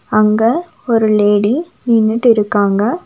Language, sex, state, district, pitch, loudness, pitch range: Tamil, female, Tamil Nadu, Nilgiris, 220 Hz, -13 LUFS, 210-240 Hz